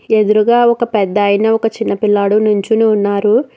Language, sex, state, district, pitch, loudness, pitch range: Telugu, female, Telangana, Hyderabad, 215 Hz, -13 LUFS, 205-225 Hz